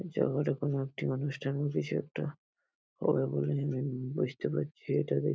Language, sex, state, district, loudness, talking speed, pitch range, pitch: Bengali, male, West Bengal, Paschim Medinipur, -33 LUFS, 155 wpm, 130-140 Hz, 135 Hz